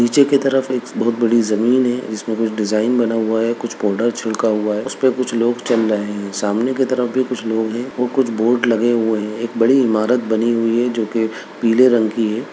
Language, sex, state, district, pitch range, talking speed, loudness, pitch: Hindi, male, Bihar, Begusarai, 110-125 Hz, 240 wpm, -17 LUFS, 115 Hz